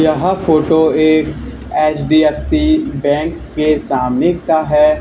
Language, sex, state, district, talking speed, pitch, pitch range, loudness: Hindi, male, Haryana, Charkhi Dadri, 110 wpm, 155 Hz, 150-165 Hz, -14 LUFS